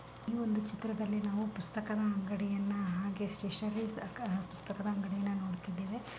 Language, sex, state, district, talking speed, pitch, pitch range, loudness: Kannada, female, Karnataka, Gulbarga, 85 wpm, 205 Hz, 195-215 Hz, -37 LUFS